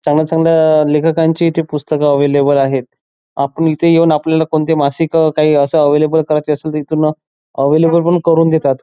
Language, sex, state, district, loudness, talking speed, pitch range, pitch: Marathi, male, Maharashtra, Chandrapur, -13 LUFS, 155 wpm, 150-160 Hz, 155 Hz